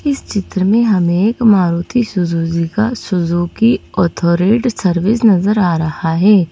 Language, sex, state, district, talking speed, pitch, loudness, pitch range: Hindi, female, Madhya Pradesh, Bhopal, 145 wpm, 190 Hz, -14 LUFS, 170-220 Hz